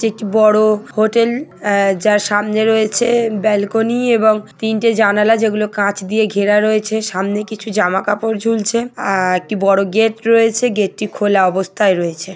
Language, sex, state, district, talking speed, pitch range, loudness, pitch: Bengali, female, West Bengal, Paschim Medinipur, 150 wpm, 205-225 Hz, -15 LUFS, 215 Hz